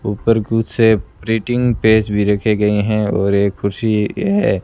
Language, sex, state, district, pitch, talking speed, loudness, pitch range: Hindi, male, Rajasthan, Bikaner, 110 Hz, 170 wpm, -16 LUFS, 105-115 Hz